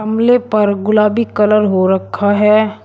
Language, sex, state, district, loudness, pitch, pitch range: Hindi, male, Uttar Pradesh, Shamli, -13 LUFS, 210 Hz, 205-215 Hz